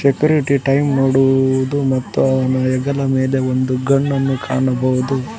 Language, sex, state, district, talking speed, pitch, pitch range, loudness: Kannada, male, Karnataka, Koppal, 120 wpm, 135 Hz, 130-140 Hz, -16 LUFS